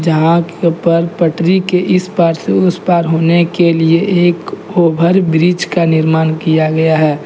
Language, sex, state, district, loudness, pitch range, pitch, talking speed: Hindi, male, Jharkhand, Deoghar, -12 LUFS, 160-175 Hz, 170 Hz, 165 wpm